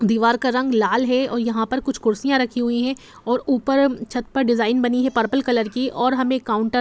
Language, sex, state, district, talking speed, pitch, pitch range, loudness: Hindi, female, Jharkhand, Jamtara, 240 wpm, 245 Hz, 230-260 Hz, -20 LUFS